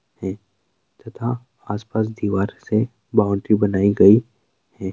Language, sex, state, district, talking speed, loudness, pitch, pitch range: Hindi, male, Bihar, Araria, 110 wpm, -20 LUFS, 105 Hz, 100-115 Hz